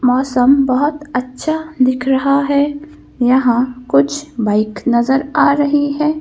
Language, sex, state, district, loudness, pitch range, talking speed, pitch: Hindi, female, Madhya Pradesh, Bhopal, -15 LUFS, 250-290 Hz, 125 wpm, 265 Hz